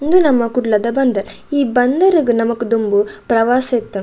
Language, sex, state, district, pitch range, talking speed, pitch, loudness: Tulu, female, Karnataka, Dakshina Kannada, 225-270 Hz, 150 wpm, 240 Hz, -15 LUFS